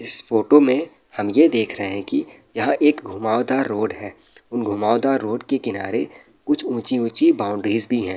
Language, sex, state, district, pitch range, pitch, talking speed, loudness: Hindi, male, Bihar, Madhepura, 110-135 Hz, 120 Hz, 190 wpm, -20 LUFS